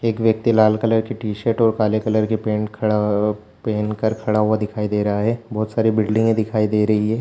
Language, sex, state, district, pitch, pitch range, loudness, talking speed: Hindi, male, Chhattisgarh, Bilaspur, 110 Hz, 105-110 Hz, -19 LUFS, 225 wpm